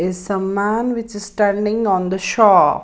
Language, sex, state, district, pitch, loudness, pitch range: English, female, Maharashtra, Mumbai Suburban, 205 Hz, -17 LUFS, 190-215 Hz